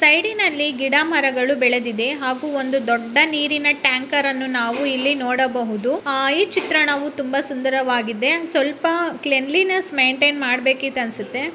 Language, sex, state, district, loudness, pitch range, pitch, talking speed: Kannada, male, Karnataka, Bellary, -18 LUFS, 255-295 Hz, 275 Hz, 120 wpm